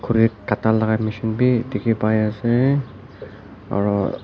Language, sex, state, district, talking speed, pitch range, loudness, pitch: Nagamese, male, Nagaland, Dimapur, 125 wpm, 105-120 Hz, -20 LUFS, 110 Hz